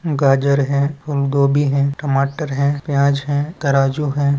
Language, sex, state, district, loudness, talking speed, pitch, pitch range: Hindi, male, Chhattisgarh, Raigarh, -17 LUFS, 150 wpm, 140 Hz, 140-145 Hz